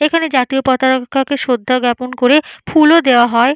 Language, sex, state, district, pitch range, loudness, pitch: Bengali, female, Jharkhand, Jamtara, 250-285 Hz, -13 LUFS, 260 Hz